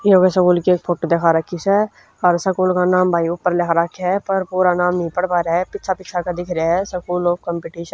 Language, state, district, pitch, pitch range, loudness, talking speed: Haryanvi, Haryana, Rohtak, 180 Hz, 175-185 Hz, -18 LUFS, 265 wpm